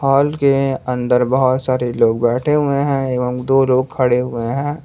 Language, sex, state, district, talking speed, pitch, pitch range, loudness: Hindi, male, Jharkhand, Palamu, 185 wpm, 130 Hz, 125-140 Hz, -16 LUFS